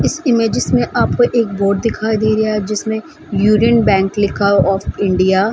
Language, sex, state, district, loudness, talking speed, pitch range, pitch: Hindi, female, Bihar, Samastipur, -15 LUFS, 185 wpm, 195-220 Hz, 210 Hz